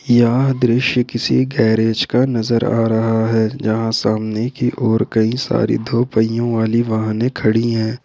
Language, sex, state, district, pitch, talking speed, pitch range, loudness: Hindi, male, Jharkhand, Ranchi, 115 Hz, 155 wpm, 110-125 Hz, -17 LUFS